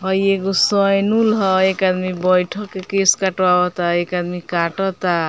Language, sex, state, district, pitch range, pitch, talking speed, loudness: Bhojpuri, female, Bihar, Muzaffarpur, 180-195 Hz, 190 Hz, 160 wpm, -17 LUFS